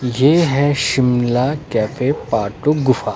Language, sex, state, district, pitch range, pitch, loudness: Hindi, male, Himachal Pradesh, Shimla, 120-145 Hz, 130 Hz, -16 LUFS